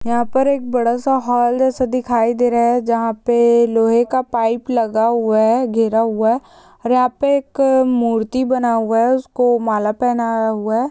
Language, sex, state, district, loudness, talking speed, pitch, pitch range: Hindi, female, Bihar, Jahanabad, -16 LUFS, 190 wpm, 235 Hz, 230-255 Hz